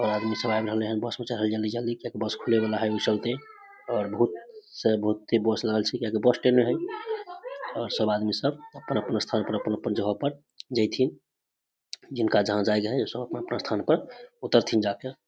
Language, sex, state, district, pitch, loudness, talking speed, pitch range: Maithili, male, Bihar, Samastipur, 110 Hz, -27 LUFS, 210 wpm, 110-135 Hz